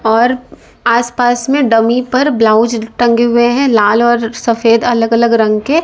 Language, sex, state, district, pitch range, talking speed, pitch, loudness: Hindi, female, Uttar Pradesh, Lalitpur, 230-245 Hz, 175 wpm, 235 Hz, -11 LUFS